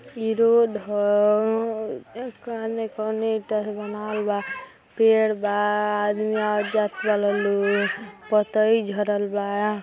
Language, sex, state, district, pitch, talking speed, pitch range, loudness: Hindi, female, Uttar Pradesh, Gorakhpur, 210 Hz, 115 wpm, 205-220 Hz, -23 LUFS